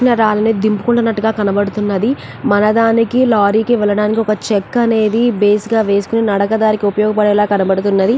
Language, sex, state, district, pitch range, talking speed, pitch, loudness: Telugu, female, Andhra Pradesh, Chittoor, 205-225 Hz, 130 wpm, 215 Hz, -14 LUFS